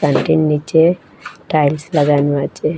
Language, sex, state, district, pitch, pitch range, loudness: Bengali, female, Assam, Hailakandi, 150 Hz, 145-155 Hz, -15 LUFS